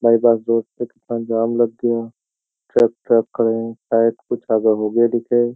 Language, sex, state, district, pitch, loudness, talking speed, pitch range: Hindi, male, Uttar Pradesh, Jyotiba Phule Nagar, 115 Hz, -18 LUFS, 95 wpm, 115-120 Hz